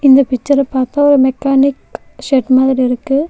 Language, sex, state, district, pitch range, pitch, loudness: Tamil, female, Tamil Nadu, Nilgiris, 260-280 Hz, 270 Hz, -12 LUFS